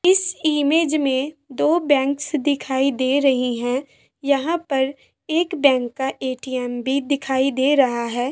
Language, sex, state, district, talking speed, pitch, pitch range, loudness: Hindi, female, Bihar, Gopalganj, 145 wpm, 275 Hz, 260-295 Hz, -20 LUFS